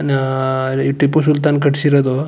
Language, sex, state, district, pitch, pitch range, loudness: Kannada, male, Karnataka, Chamarajanagar, 140 Hz, 135-145 Hz, -15 LUFS